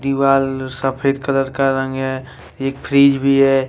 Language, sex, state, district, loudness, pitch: Hindi, male, Jharkhand, Ranchi, -17 LUFS, 135 Hz